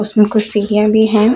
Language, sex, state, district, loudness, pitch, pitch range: Hindi, female, Chhattisgarh, Bilaspur, -13 LUFS, 215 Hz, 210-215 Hz